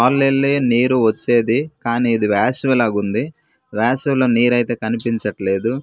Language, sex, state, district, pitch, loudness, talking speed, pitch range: Telugu, male, Andhra Pradesh, Manyam, 120 Hz, -17 LUFS, 105 wpm, 115-130 Hz